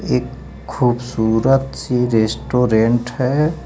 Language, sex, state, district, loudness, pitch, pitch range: Hindi, male, Uttar Pradesh, Lucknow, -17 LUFS, 125 Hz, 115-130 Hz